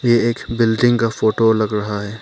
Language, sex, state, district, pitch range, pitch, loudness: Hindi, male, Arunachal Pradesh, Papum Pare, 110-115 Hz, 110 Hz, -17 LUFS